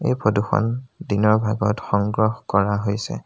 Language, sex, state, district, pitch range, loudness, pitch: Assamese, male, Assam, Sonitpur, 100-115 Hz, -21 LUFS, 110 Hz